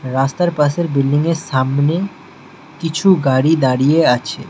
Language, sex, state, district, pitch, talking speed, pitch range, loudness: Bengali, male, West Bengal, Alipurduar, 150 Hz, 105 wpm, 135-165 Hz, -15 LUFS